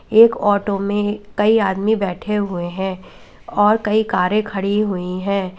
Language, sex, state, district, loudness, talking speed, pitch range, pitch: Hindi, female, Uttar Pradesh, Lalitpur, -18 LUFS, 150 wpm, 190-215 Hz, 205 Hz